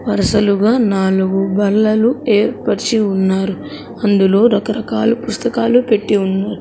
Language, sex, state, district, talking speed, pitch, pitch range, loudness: Telugu, female, Andhra Pradesh, Sri Satya Sai, 90 wpm, 210 Hz, 195-230 Hz, -15 LUFS